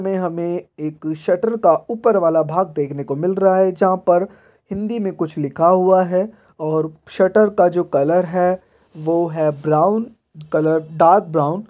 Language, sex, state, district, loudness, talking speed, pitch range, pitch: Hindi, male, Bihar, Purnia, -18 LUFS, 170 wpm, 155-190 Hz, 175 Hz